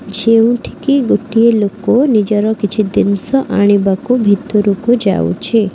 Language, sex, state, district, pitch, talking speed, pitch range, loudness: Odia, female, Odisha, Khordha, 215 Hz, 95 wpm, 200-235 Hz, -13 LUFS